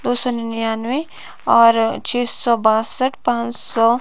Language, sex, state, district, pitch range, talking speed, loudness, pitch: Hindi, female, Himachal Pradesh, Shimla, 225-245 Hz, 120 wpm, -18 LUFS, 235 Hz